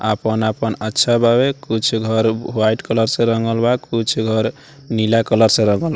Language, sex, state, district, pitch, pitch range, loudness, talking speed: Bhojpuri, male, Bihar, Muzaffarpur, 115 Hz, 110-120 Hz, -17 LUFS, 170 wpm